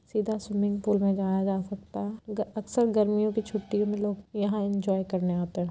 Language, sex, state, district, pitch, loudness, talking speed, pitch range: Hindi, female, Uttar Pradesh, Varanasi, 205 Hz, -28 LUFS, 200 wpm, 195-215 Hz